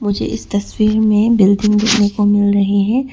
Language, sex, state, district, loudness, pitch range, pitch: Hindi, female, Arunachal Pradesh, Papum Pare, -14 LUFS, 200-215 Hz, 210 Hz